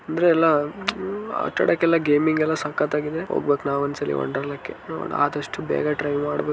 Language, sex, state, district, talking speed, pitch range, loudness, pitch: Kannada, male, Karnataka, Dharwad, 165 wpm, 145-165 Hz, -23 LUFS, 150 Hz